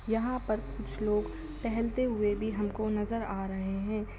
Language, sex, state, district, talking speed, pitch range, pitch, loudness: Hindi, female, Bihar, Saran, 170 wpm, 210-230 Hz, 215 Hz, -33 LUFS